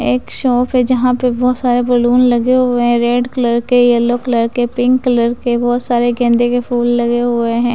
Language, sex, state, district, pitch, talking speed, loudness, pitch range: Hindi, female, Bihar, West Champaran, 245 Hz, 215 wpm, -13 LUFS, 240-250 Hz